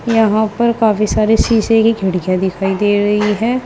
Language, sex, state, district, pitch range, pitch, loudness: Hindi, female, Uttar Pradesh, Saharanpur, 205-225 Hz, 215 Hz, -14 LUFS